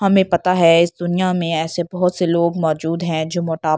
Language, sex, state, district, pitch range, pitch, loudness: Hindi, female, Delhi, New Delhi, 160-180 Hz, 170 Hz, -17 LUFS